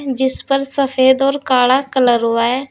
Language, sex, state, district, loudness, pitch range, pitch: Hindi, female, Uttar Pradesh, Saharanpur, -15 LUFS, 255-275 Hz, 265 Hz